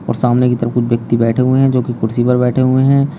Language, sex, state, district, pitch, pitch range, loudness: Hindi, male, Uttar Pradesh, Shamli, 125 Hz, 120-130 Hz, -14 LUFS